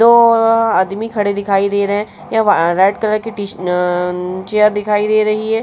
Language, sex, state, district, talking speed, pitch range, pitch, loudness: Hindi, female, Bihar, Vaishali, 190 wpm, 195-220 Hz, 205 Hz, -15 LUFS